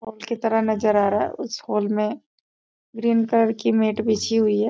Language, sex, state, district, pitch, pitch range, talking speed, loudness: Hindi, female, Bihar, East Champaran, 220 Hz, 210-225 Hz, 215 wpm, -22 LUFS